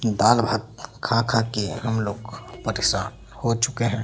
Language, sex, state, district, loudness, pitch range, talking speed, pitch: Hindi, male, Chhattisgarh, Raipur, -23 LUFS, 110-115 Hz, 150 wpm, 115 Hz